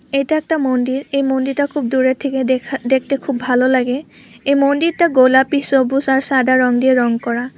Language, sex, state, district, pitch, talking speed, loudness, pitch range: Bengali, female, West Bengal, Purulia, 265 Hz, 180 wpm, -16 LUFS, 255-275 Hz